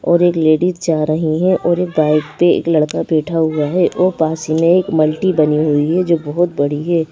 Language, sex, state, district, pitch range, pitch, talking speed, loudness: Hindi, female, Madhya Pradesh, Bhopal, 155-175 Hz, 160 Hz, 225 wpm, -15 LUFS